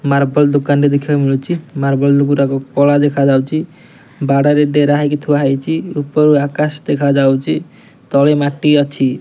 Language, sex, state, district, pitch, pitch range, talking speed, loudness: Odia, male, Odisha, Nuapada, 145 Hz, 140-150 Hz, 130 wpm, -14 LUFS